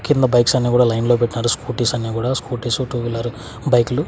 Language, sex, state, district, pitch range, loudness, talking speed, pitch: Telugu, male, Andhra Pradesh, Sri Satya Sai, 120-125 Hz, -18 LUFS, 205 wpm, 120 Hz